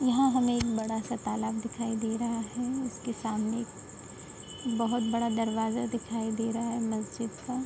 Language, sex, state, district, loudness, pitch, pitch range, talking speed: Hindi, female, Uttar Pradesh, Budaun, -31 LUFS, 230 Hz, 225-240 Hz, 165 wpm